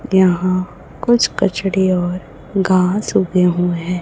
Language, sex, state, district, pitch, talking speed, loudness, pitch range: Hindi, female, Chhattisgarh, Raipur, 185 Hz, 120 wpm, -16 LUFS, 180-195 Hz